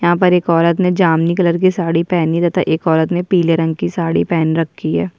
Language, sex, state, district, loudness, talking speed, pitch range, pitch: Hindi, female, Bihar, Kishanganj, -15 LUFS, 230 wpm, 165-180 Hz, 170 Hz